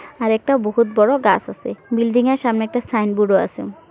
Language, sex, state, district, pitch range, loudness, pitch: Bengali, female, West Bengal, Kolkata, 215-245 Hz, -18 LUFS, 230 Hz